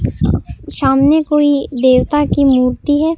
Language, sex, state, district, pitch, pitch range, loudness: Hindi, male, Rajasthan, Bikaner, 285 Hz, 260-295 Hz, -13 LUFS